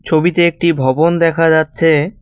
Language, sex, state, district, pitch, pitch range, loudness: Bengali, male, West Bengal, Cooch Behar, 165 Hz, 155-170 Hz, -13 LUFS